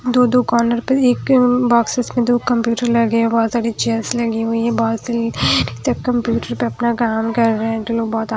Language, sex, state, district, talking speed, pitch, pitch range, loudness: Hindi, female, Haryana, Jhajjar, 165 wpm, 235 Hz, 225-240 Hz, -17 LUFS